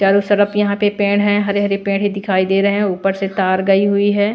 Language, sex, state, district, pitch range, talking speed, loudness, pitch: Hindi, female, Bihar, Patna, 195-205 Hz, 260 wpm, -16 LUFS, 200 Hz